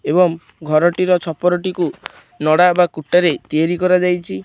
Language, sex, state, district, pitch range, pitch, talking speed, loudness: Odia, male, Odisha, Khordha, 155-180 Hz, 175 Hz, 110 wpm, -16 LUFS